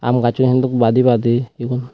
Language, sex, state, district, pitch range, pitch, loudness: Chakma, female, Tripura, West Tripura, 120-130 Hz, 125 Hz, -16 LUFS